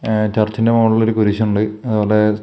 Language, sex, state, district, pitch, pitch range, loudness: Malayalam, male, Kerala, Kasaragod, 110 Hz, 105-110 Hz, -16 LUFS